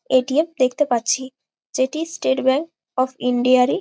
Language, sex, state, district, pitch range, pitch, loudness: Bengali, female, West Bengal, Jalpaiguri, 255-295 Hz, 260 Hz, -20 LUFS